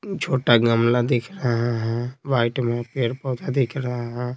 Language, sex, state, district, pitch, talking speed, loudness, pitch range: Hindi, male, Bihar, Patna, 120 Hz, 150 wpm, -22 LUFS, 120-130 Hz